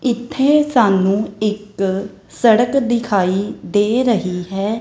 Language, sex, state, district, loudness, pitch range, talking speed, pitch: Punjabi, female, Punjab, Kapurthala, -17 LUFS, 195-240 Hz, 100 wpm, 210 Hz